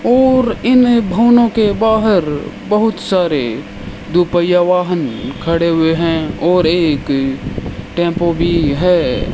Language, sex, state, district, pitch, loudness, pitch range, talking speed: Hindi, male, Rajasthan, Bikaner, 175 Hz, -14 LUFS, 160-210 Hz, 115 wpm